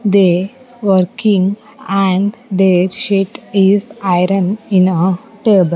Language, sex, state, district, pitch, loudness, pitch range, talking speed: English, female, Andhra Pradesh, Sri Satya Sai, 195 Hz, -14 LUFS, 185-210 Hz, 105 wpm